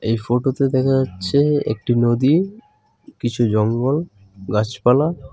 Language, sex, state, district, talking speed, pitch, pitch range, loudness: Bengali, male, West Bengal, Alipurduar, 110 wpm, 125 Hz, 110-140 Hz, -19 LUFS